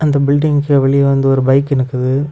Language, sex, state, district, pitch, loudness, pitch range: Tamil, male, Tamil Nadu, Kanyakumari, 140 Hz, -13 LUFS, 135-145 Hz